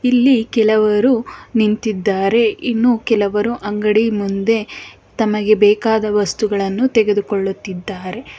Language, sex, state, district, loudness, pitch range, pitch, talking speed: Kannada, female, Karnataka, Bangalore, -16 LUFS, 205-230 Hz, 215 Hz, 80 wpm